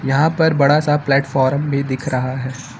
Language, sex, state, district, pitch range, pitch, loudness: Hindi, male, Uttar Pradesh, Lucknow, 130-150 Hz, 140 Hz, -17 LUFS